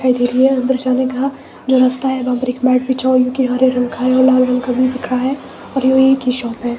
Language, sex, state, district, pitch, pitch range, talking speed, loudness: Hindi, female, Himachal Pradesh, Shimla, 255 Hz, 250-260 Hz, 255 wpm, -15 LUFS